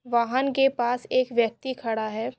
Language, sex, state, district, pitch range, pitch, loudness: Hindi, female, Chhattisgarh, Korba, 235-260 Hz, 240 Hz, -25 LUFS